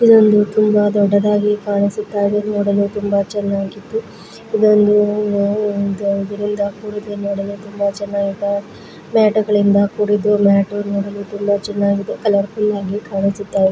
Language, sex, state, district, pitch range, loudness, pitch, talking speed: Kannada, female, Karnataka, Raichur, 200-210 Hz, -17 LUFS, 205 Hz, 85 wpm